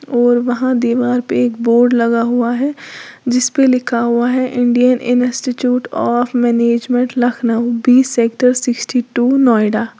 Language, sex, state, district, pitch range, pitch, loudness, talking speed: Hindi, female, Uttar Pradesh, Lalitpur, 235-250 Hz, 245 Hz, -14 LUFS, 150 wpm